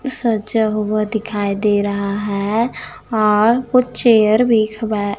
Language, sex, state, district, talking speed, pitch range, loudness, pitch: Hindi, female, Chhattisgarh, Raipur, 125 wpm, 210-230 Hz, -16 LUFS, 215 Hz